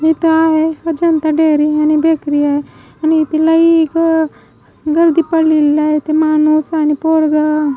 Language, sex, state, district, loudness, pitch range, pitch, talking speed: Marathi, female, Maharashtra, Mumbai Suburban, -13 LUFS, 305-320 Hz, 315 Hz, 140 wpm